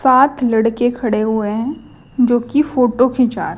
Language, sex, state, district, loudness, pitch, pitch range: Hindi, female, Chhattisgarh, Raipur, -16 LUFS, 245 Hz, 230-260 Hz